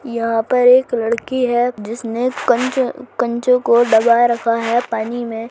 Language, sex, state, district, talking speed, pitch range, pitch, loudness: Hindi, female, Rajasthan, Churu, 155 wpm, 230-250 Hz, 240 Hz, -16 LUFS